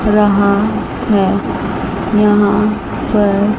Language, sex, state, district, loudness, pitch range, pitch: Hindi, female, Chandigarh, Chandigarh, -14 LUFS, 200-210 Hz, 210 Hz